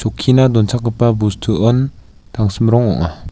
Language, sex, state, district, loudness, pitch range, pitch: Garo, male, Meghalaya, West Garo Hills, -15 LUFS, 105-120 Hz, 115 Hz